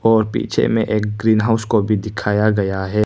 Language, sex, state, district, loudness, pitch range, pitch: Hindi, male, Arunachal Pradesh, Papum Pare, -18 LUFS, 105-110 Hz, 110 Hz